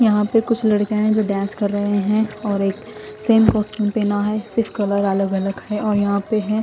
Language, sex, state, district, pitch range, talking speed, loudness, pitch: Hindi, female, Odisha, Khordha, 200-215 Hz, 225 wpm, -19 LUFS, 210 Hz